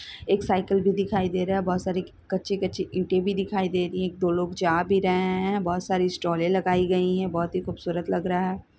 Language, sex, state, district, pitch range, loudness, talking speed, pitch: Hindi, female, Bihar, Saran, 180-190 Hz, -25 LUFS, 250 wpm, 185 Hz